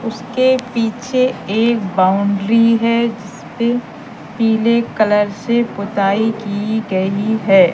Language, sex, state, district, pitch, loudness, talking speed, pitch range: Hindi, female, Madhya Pradesh, Katni, 225 Hz, -16 LUFS, 100 wpm, 205-235 Hz